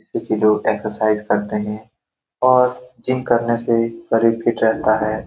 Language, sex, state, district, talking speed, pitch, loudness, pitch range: Hindi, male, Bihar, Saran, 160 wpm, 115 Hz, -18 LUFS, 110-120 Hz